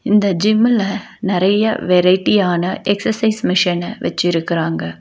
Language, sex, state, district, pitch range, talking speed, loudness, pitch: Tamil, female, Tamil Nadu, Nilgiris, 175-215 Hz, 85 wpm, -16 LUFS, 195 Hz